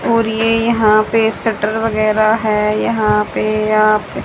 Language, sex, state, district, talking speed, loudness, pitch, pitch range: Hindi, female, Haryana, Charkhi Dadri, 140 wpm, -14 LUFS, 215 Hz, 215-225 Hz